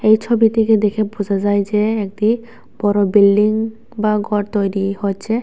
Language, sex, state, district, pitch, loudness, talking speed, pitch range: Bengali, female, Tripura, West Tripura, 210 Hz, -17 LUFS, 145 wpm, 205-220 Hz